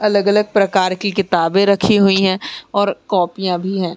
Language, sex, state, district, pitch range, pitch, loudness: Hindi, female, Uttar Pradesh, Muzaffarnagar, 185-200 Hz, 195 Hz, -16 LUFS